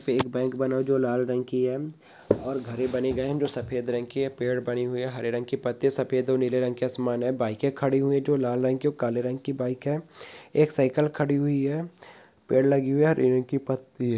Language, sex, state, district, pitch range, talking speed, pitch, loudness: Hindi, male, Andhra Pradesh, Krishna, 125-140 Hz, 235 wpm, 130 Hz, -26 LUFS